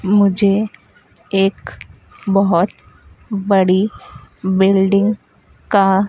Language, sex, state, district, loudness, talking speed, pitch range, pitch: Hindi, female, Madhya Pradesh, Dhar, -16 LUFS, 60 wpm, 190-200 Hz, 195 Hz